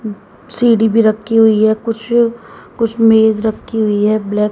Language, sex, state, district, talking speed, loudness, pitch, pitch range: Hindi, female, Haryana, Jhajjar, 170 wpm, -13 LUFS, 220 Hz, 215-230 Hz